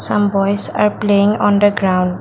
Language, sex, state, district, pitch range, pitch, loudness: English, female, Assam, Kamrup Metropolitan, 195-205 Hz, 205 Hz, -14 LUFS